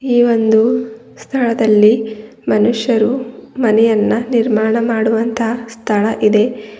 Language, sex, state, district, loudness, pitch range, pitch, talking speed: Kannada, female, Karnataka, Bidar, -14 LUFS, 220-235 Hz, 225 Hz, 80 wpm